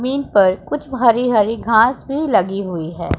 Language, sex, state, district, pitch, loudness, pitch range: Hindi, female, Punjab, Pathankot, 230 Hz, -16 LUFS, 195-260 Hz